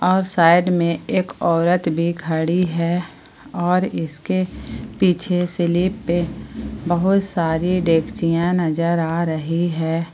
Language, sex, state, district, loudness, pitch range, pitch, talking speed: Hindi, female, Jharkhand, Palamu, -19 LUFS, 165-180 Hz, 170 Hz, 120 wpm